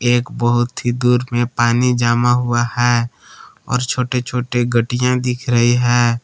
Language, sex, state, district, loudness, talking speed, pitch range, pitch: Hindi, male, Jharkhand, Palamu, -17 LUFS, 155 wpm, 120-125 Hz, 120 Hz